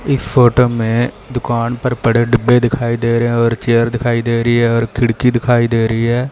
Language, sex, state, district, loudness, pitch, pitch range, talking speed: Hindi, male, Punjab, Fazilka, -14 LUFS, 120 Hz, 115-125 Hz, 220 wpm